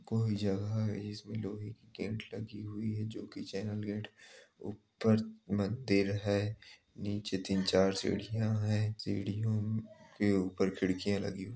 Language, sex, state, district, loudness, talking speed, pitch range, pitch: Hindi, male, Uttar Pradesh, Jalaun, -35 LUFS, 160 wpm, 100-110 Hz, 105 Hz